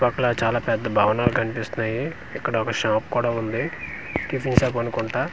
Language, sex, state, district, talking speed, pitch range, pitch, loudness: Telugu, male, Andhra Pradesh, Manyam, 155 wpm, 115-130 Hz, 120 Hz, -23 LUFS